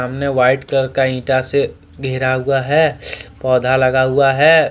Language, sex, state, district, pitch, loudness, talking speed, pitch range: Hindi, male, Jharkhand, Deoghar, 130 Hz, -15 LUFS, 155 wpm, 130-140 Hz